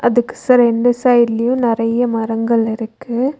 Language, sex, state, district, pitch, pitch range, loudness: Tamil, female, Tamil Nadu, Nilgiris, 235 Hz, 225-245 Hz, -15 LUFS